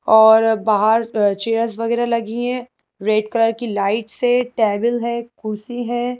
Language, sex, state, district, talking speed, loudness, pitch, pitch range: Hindi, female, Madhya Pradesh, Bhopal, 155 wpm, -18 LUFS, 230 Hz, 215-240 Hz